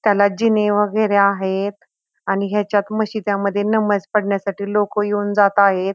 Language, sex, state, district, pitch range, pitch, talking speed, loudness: Marathi, female, Maharashtra, Pune, 200-210 Hz, 205 Hz, 130 wpm, -18 LUFS